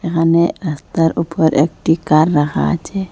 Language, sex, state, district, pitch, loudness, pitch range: Bengali, female, Assam, Hailakandi, 165 Hz, -15 LUFS, 155-170 Hz